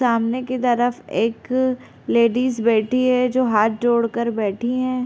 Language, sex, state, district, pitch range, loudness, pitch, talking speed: Hindi, female, Bihar, Gopalganj, 230-255 Hz, -20 LUFS, 240 Hz, 165 wpm